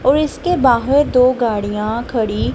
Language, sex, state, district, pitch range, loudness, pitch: Hindi, female, Punjab, Kapurthala, 225-275 Hz, -16 LUFS, 250 Hz